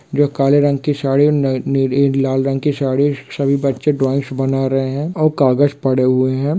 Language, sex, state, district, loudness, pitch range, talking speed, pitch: Hindi, male, Bihar, Kishanganj, -16 LUFS, 135-145 Hz, 190 wpm, 135 Hz